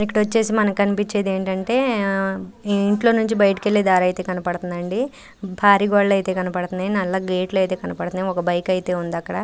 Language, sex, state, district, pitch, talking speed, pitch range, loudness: Telugu, female, Andhra Pradesh, Anantapur, 195 Hz, 160 wpm, 185-205 Hz, -20 LUFS